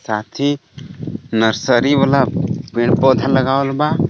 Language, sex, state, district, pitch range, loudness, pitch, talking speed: Bhojpuri, male, Jharkhand, Palamu, 120-145 Hz, -16 LUFS, 135 Hz, 105 wpm